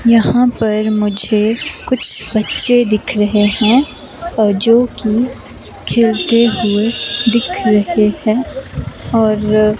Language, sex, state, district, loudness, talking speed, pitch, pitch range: Hindi, female, Himachal Pradesh, Shimla, -14 LUFS, 105 wpm, 220 Hz, 210-235 Hz